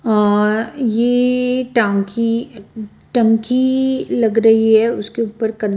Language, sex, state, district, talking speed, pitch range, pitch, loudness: Hindi, female, Bihar, West Champaran, 115 wpm, 215-245 Hz, 230 Hz, -16 LUFS